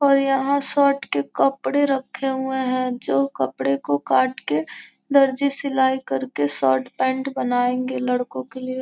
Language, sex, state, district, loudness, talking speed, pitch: Hindi, female, Bihar, Gopalganj, -21 LUFS, 155 wpm, 255 Hz